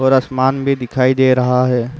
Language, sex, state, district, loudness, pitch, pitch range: Hindi, male, Uttar Pradesh, Muzaffarnagar, -15 LUFS, 130 Hz, 125-135 Hz